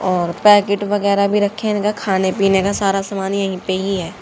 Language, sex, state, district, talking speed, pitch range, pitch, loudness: Hindi, female, Haryana, Charkhi Dadri, 215 wpm, 190-205 Hz, 195 Hz, -17 LUFS